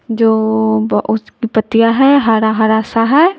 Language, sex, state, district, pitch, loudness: Hindi, female, Bihar, West Champaran, 220 Hz, -13 LUFS